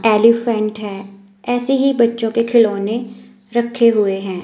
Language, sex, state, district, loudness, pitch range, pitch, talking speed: Hindi, female, Himachal Pradesh, Shimla, -16 LUFS, 205-235 Hz, 225 Hz, 135 wpm